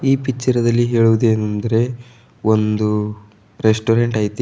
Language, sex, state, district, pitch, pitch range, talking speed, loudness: Kannada, male, Karnataka, Bidar, 115 Hz, 105-120 Hz, 80 wpm, -17 LUFS